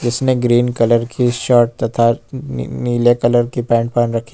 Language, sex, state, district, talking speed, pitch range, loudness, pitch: Hindi, male, Jharkhand, Ranchi, 180 wpm, 115-120 Hz, -16 LUFS, 120 Hz